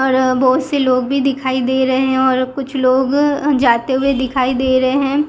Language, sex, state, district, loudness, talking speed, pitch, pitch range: Hindi, female, Gujarat, Gandhinagar, -15 LUFS, 190 wpm, 260 Hz, 255-275 Hz